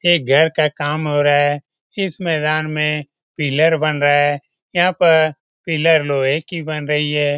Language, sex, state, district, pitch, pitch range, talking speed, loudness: Hindi, male, Bihar, Lakhisarai, 155 Hz, 145-160 Hz, 180 wpm, -17 LUFS